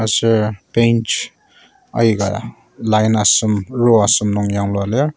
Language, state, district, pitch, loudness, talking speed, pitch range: Ao, Nagaland, Kohima, 110 Hz, -16 LUFS, 115 wpm, 105-115 Hz